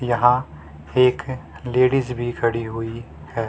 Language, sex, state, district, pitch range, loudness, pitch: Hindi, male, Haryana, Rohtak, 115-125 Hz, -21 LUFS, 120 Hz